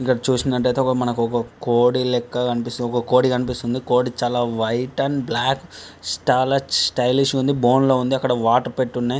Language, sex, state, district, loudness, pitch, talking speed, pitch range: Telugu, male, Telangana, Karimnagar, -20 LUFS, 125 Hz, 175 wpm, 120-130 Hz